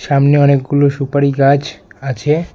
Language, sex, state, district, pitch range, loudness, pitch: Bengali, male, West Bengal, Alipurduar, 140-145 Hz, -13 LUFS, 140 Hz